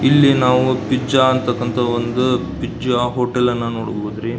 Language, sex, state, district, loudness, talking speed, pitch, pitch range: Kannada, male, Karnataka, Belgaum, -17 LUFS, 150 wpm, 125 Hz, 120-130 Hz